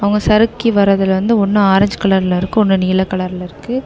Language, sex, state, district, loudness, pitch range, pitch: Tamil, female, Tamil Nadu, Kanyakumari, -14 LUFS, 190-215 Hz, 195 Hz